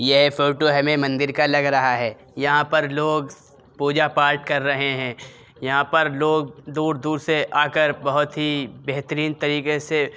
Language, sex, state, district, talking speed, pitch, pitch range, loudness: Hindi, male, Uttar Pradesh, Jyotiba Phule Nagar, 160 wpm, 145 Hz, 140-150 Hz, -21 LUFS